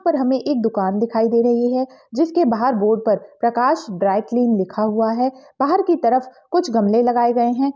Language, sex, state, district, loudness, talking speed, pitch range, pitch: Hindi, female, Bihar, Begusarai, -18 LUFS, 210 wpm, 225-265 Hz, 240 Hz